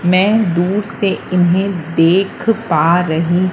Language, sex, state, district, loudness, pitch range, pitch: Hindi, female, Maharashtra, Washim, -14 LUFS, 175-200 Hz, 185 Hz